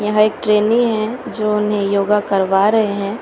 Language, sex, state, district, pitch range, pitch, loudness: Hindi, female, Chhattisgarh, Raipur, 200-215 Hz, 210 Hz, -16 LUFS